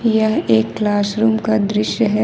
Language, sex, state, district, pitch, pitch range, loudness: Hindi, female, Jharkhand, Ranchi, 215 Hz, 205-220 Hz, -17 LUFS